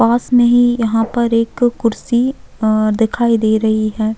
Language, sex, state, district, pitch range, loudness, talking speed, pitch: Hindi, female, Uttarakhand, Tehri Garhwal, 220-240 Hz, -15 LUFS, 170 wpm, 230 Hz